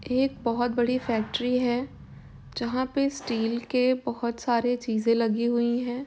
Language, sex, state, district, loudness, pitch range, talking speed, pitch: Hindi, female, Uttar Pradesh, Jyotiba Phule Nagar, -26 LUFS, 235-250 Hz, 150 wpm, 245 Hz